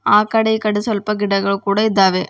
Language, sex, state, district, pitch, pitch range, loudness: Kannada, female, Karnataka, Bidar, 210 Hz, 195-215 Hz, -16 LUFS